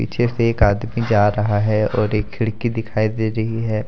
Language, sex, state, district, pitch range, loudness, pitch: Hindi, male, Jharkhand, Deoghar, 105-115 Hz, -19 LUFS, 110 Hz